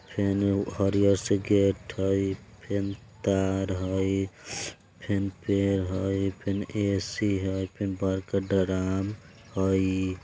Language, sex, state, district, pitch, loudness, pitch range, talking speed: Bajjika, male, Bihar, Vaishali, 95 Hz, -28 LUFS, 95-100 Hz, 110 wpm